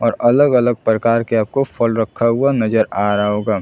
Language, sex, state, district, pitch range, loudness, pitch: Hindi, male, Chhattisgarh, Bilaspur, 110-120 Hz, -16 LUFS, 115 Hz